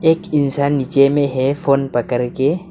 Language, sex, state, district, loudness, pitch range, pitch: Hindi, male, Arunachal Pradesh, Lower Dibang Valley, -17 LUFS, 135-145 Hz, 140 Hz